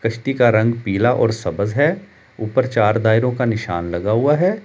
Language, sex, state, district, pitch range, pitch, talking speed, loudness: Hindi, male, Delhi, New Delhi, 110-130 Hz, 115 Hz, 195 wpm, -18 LUFS